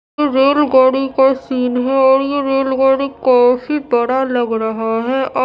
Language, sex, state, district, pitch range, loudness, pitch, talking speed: Hindi, female, Bihar, Katihar, 250-270 Hz, -14 LUFS, 265 Hz, 130 wpm